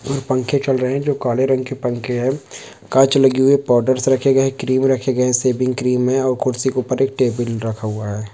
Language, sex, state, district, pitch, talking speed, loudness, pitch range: Hindi, male, West Bengal, Malda, 130 Hz, 250 wpm, -17 LUFS, 125-135 Hz